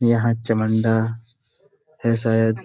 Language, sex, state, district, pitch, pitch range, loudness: Hindi, male, Uttar Pradesh, Budaun, 115 Hz, 110-115 Hz, -20 LUFS